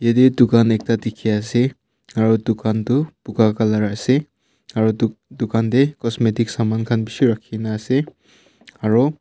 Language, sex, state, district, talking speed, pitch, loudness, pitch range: Nagamese, male, Nagaland, Kohima, 150 wpm, 115 Hz, -19 LUFS, 110-120 Hz